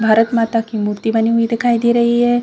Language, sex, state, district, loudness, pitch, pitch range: Hindi, female, Chhattisgarh, Bilaspur, -15 LUFS, 230 Hz, 225-235 Hz